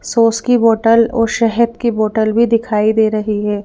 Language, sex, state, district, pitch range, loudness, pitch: Hindi, female, Madhya Pradesh, Bhopal, 215-230 Hz, -14 LUFS, 225 Hz